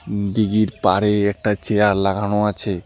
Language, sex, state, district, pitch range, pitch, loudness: Bengali, male, West Bengal, Alipurduar, 100-105 Hz, 100 Hz, -19 LUFS